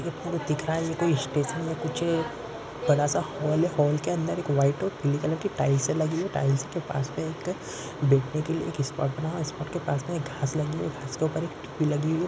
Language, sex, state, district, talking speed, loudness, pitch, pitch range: Hindi, male, Bihar, East Champaran, 250 wpm, -28 LUFS, 155 Hz, 145-165 Hz